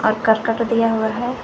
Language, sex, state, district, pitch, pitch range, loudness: Hindi, female, Jharkhand, Garhwa, 230 Hz, 220-230 Hz, -18 LUFS